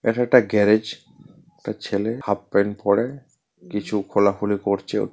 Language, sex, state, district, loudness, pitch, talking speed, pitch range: Bengali, male, West Bengal, Purulia, -21 LUFS, 105 Hz, 130 wpm, 100-115 Hz